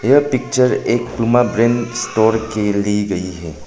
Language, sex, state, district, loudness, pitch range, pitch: Hindi, male, Arunachal Pradesh, Papum Pare, -16 LUFS, 105-120 Hz, 115 Hz